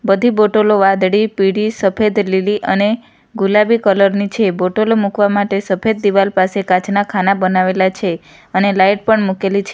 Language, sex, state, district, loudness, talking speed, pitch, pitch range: Gujarati, female, Gujarat, Valsad, -14 LUFS, 165 wpm, 200 Hz, 190-210 Hz